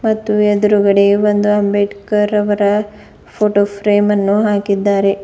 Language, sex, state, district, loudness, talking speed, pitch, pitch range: Kannada, female, Karnataka, Bidar, -14 LUFS, 105 wpm, 205 Hz, 200-210 Hz